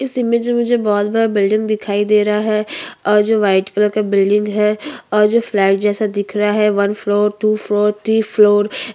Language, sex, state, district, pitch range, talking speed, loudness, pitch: Hindi, female, Chhattisgarh, Bastar, 205-215 Hz, 210 wpm, -15 LUFS, 210 Hz